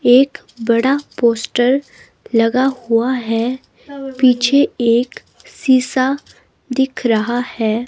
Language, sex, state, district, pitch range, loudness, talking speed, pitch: Hindi, female, Himachal Pradesh, Shimla, 235-265 Hz, -16 LUFS, 90 wpm, 250 Hz